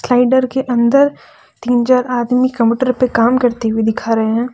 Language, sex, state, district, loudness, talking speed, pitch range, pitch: Hindi, female, Jharkhand, Deoghar, -14 LUFS, 185 wpm, 230-255 Hz, 245 Hz